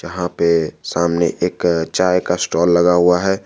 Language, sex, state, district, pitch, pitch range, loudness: Hindi, male, Jharkhand, Garhwa, 85 Hz, 85-90 Hz, -16 LUFS